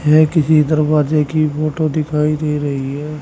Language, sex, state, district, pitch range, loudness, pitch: Hindi, male, Haryana, Rohtak, 150-155 Hz, -16 LUFS, 150 Hz